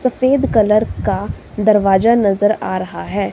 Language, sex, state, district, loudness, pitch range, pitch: Hindi, female, Himachal Pradesh, Shimla, -15 LUFS, 200-235 Hz, 210 Hz